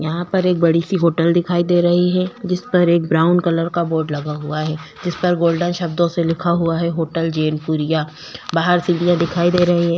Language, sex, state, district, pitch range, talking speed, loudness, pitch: Hindi, female, Chhattisgarh, Korba, 165-175 Hz, 215 wpm, -18 LUFS, 170 Hz